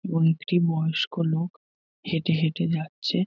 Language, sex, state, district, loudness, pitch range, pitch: Bengali, male, West Bengal, North 24 Parganas, -25 LUFS, 160-175 Hz, 165 Hz